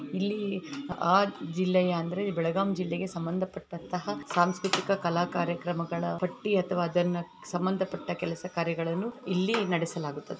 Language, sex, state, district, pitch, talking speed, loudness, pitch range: Kannada, female, Karnataka, Belgaum, 180 Hz, 105 wpm, -30 LUFS, 170-190 Hz